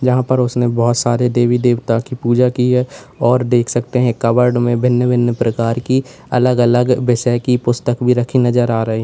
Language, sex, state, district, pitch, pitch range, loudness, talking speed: Hindi, male, Uttar Pradesh, Lalitpur, 120 Hz, 120-125 Hz, -15 LUFS, 210 wpm